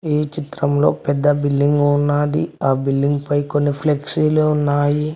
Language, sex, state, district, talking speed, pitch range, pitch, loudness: Telugu, male, Telangana, Mahabubabad, 130 wpm, 145-150 Hz, 145 Hz, -18 LUFS